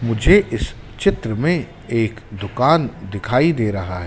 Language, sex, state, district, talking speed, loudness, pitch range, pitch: Hindi, male, Madhya Pradesh, Dhar, 135 wpm, -18 LUFS, 105-155 Hz, 115 Hz